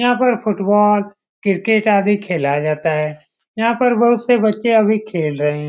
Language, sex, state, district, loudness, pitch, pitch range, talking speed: Hindi, male, Bihar, Saran, -16 LUFS, 210 Hz, 165-225 Hz, 180 wpm